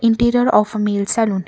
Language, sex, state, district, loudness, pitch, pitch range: English, female, Karnataka, Bangalore, -16 LUFS, 220 Hz, 205-230 Hz